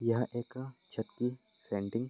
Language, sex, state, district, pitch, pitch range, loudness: Hindi, male, Maharashtra, Nagpur, 120 Hz, 115-125 Hz, -37 LUFS